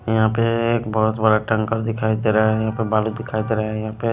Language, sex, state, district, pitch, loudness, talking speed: Hindi, male, Maharashtra, Gondia, 110 Hz, -20 LUFS, 275 wpm